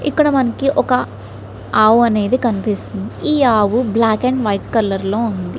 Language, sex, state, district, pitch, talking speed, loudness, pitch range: Telugu, female, Andhra Pradesh, Srikakulam, 225 Hz, 150 wpm, -16 LUFS, 200-255 Hz